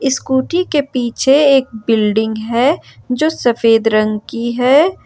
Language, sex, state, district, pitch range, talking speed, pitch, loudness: Hindi, female, Jharkhand, Ranchi, 225-280 Hz, 130 wpm, 250 Hz, -14 LUFS